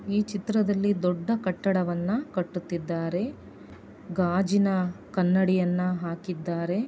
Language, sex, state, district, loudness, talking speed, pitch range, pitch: Kannada, female, Karnataka, Dakshina Kannada, -27 LUFS, 70 wpm, 180-200 Hz, 185 Hz